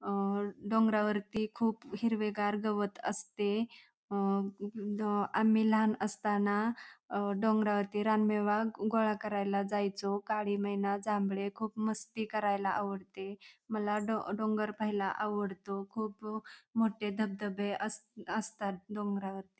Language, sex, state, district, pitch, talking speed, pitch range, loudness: Marathi, female, Maharashtra, Pune, 210 Hz, 110 wpm, 200-215 Hz, -34 LUFS